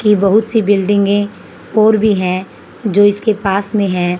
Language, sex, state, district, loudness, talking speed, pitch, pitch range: Hindi, female, Haryana, Charkhi Dadri, -14 LUFS, 170 wpm, 205 Hz, 195-215 Hz